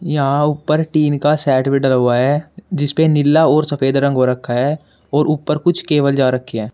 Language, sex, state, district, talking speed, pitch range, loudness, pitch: Hindi, male, Uttar Pradesh, Shamli, 225 wpm, 135-155 Hz, -15 LUFS, 145 Hz